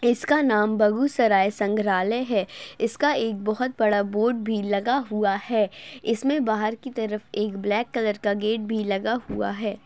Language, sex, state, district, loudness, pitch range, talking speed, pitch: Hindi, female, Bihar, Begusarai, -24 LUFS, 205-235 Hz, 165 wpm, 215 Hz